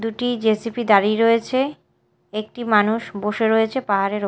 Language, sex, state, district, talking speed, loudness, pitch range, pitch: Bengali, female, Odisha, Malkangiri, 140 wpm, -20 LUFS, 210-235 Hz, 225 Hz